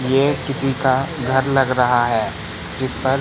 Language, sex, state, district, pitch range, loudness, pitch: Hindi, male, Madhya Pradesh, Katni, 120-135 Hz, -19 LUFS, 130 Hz